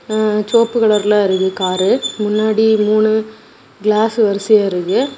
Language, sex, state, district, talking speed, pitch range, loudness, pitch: Tamil, female, Tamil Nadu, Kanyakumari, 115 wpm, 200-220 Hz, -14 LUFS, 215 Hz